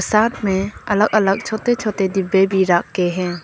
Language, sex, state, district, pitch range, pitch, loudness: Hindi, female, Nagaland, Kohima, 190-215 Hz, 195 Hz, -18 LUFS